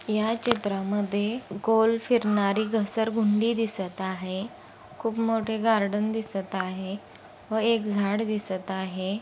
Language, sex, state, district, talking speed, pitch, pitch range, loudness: Marathi, female, Maharashtra, Pune, 110 wpm, 210 Hz, 195-225 Hz, -26 LUFS